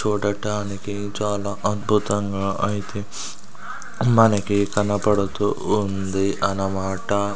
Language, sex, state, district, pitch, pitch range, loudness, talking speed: Telugu, male, Andhra Pradesh, Sri Satya Sai, 100 Hz, 100-105 Hz, -22 LUFS, 65 wpm